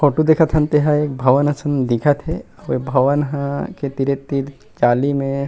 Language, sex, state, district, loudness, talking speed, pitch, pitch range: Chhattisgarhi, male, Chhattisgarh, Rajnandgaon, -18 LUFS, 175 wpm, 140 Hz, 135-150 Hz